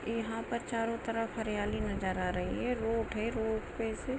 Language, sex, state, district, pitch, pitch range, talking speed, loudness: Hindi, female, Jharkhand, Sahebganj, 225 Hz, 215-230 Hz, 215 wpm, -35 LUFS